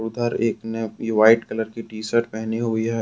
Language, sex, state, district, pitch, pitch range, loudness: Hindi, male, Jharkhand, Deoghar, 115 Hz, 110-115 Hz, -22 LUFS